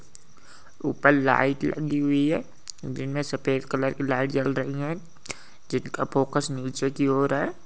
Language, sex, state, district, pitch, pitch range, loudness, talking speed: Hindi, male, Uttar Pradesh, Ghazipur, 135 Hz, 135-145 Hz, -25 LUFS, 150 wpm